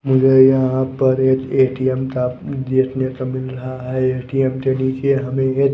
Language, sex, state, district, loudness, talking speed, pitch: Hindi, male, Odisha, Nuapada, -18 LUFS, 165 wpm, 130 Hz